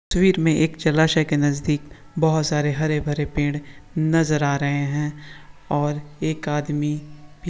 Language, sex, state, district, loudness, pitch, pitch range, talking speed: Hindi, female, Maharashtra, Sindhudurg, -22 LUFS, 150 Hz, 145-155 Hz, 145 wpm